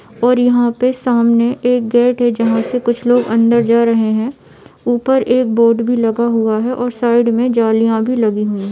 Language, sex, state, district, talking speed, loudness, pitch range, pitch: Hindi, female, Bihar, East Champaran, 205 wpm, -14 LUFS, 230-245 Hz, 235 Hz